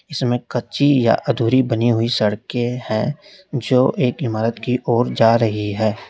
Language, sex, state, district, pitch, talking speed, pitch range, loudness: Hindi, male, Uttar Pradesh, Lalitpur, 120 Hz, 155 wpm, 115-130 Hz, -18 LUFS